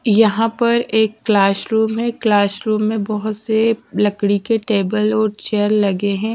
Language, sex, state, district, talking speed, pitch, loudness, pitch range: Hindi, female, Bihar, Patna, 170 wpm, 215 Hz, -17 LUFS, 205-225 Hz